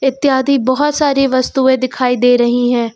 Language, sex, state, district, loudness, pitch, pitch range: Hindi, female, Uttar Pradesh, Lucknow, -13 LUFS, 260 Hz, 245-275 Hz